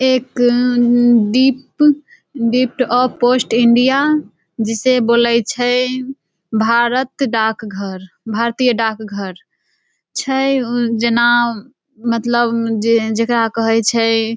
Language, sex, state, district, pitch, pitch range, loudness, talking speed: Maithili, female, Bihar, Samastipur, 240 Hz, 225-255 Hz, -15 LUFS, 95 wpm